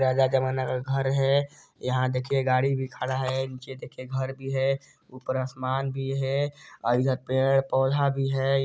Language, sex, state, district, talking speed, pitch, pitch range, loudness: Hindi, male, Chhattisgarh, Sarguja, 180 wpm, 135 Hz, 130-135 Hz, -27 LUFS